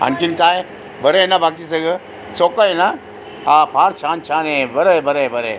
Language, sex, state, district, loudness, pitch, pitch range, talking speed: Marathi, male, Maharashtra, Aurangabad, -15 LUFS, 165 Hz, 145-180 Hz, 150 wpm